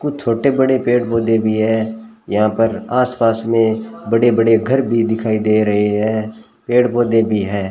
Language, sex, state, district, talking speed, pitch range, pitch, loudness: Hindi, male, Rajasthan, Bikaner, 185 wpm, 110-120 Hz, 115 Hz, -16 LUFS